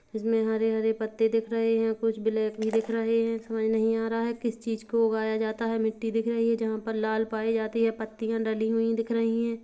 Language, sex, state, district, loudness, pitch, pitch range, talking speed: Hindi, female, Chhattisgarh, Kabirdham, -27 LUFS, 225 Hz, 220-230 Hz, 245 wpm